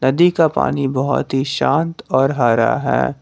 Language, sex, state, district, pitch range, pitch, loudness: Hindi, male, Jharkhand, Garhwa, 120-160 Hz, 135 Hz, -17 LUFS